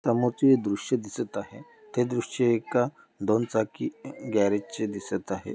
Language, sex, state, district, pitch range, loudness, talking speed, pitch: Marathi, male, Maharashtra, Pune, 110-125 Hz, -27 LUFS, 150 wpm, 120 Hz